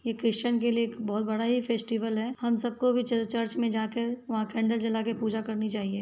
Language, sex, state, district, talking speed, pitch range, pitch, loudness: Hindi, female, Bihar, Muzaffarpur, 250 wpm, 220-235 Hz, 230 Hz, -29 LUFS